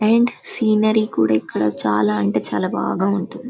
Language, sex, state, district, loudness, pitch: Telugu, female, Karnataka, Bellary, -19 LUFS, 195 Hz